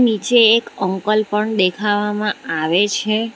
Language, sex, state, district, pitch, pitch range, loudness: Gujarati, female, Gujarat, Valsad, 210 Hz, 200-220 Hz, -17 LUFS